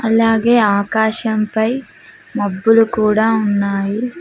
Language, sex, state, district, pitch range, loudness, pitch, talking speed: Telugu, female, Telangana, Mahabubabad, 210-225 Hz, -15 LUFS, 220 Hz, 70 wpm